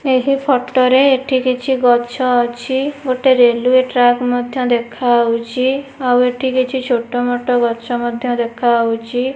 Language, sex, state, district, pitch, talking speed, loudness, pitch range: Odia, female, Odisha, Nuapada, 250 Hz, 135 wpm, -15 LUFS, 240-260 Hz